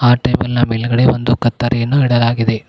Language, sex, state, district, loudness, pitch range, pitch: Kannada, male, Karnataka, Koppal, -14 LUFS, 115-125 Hz, 120 Hz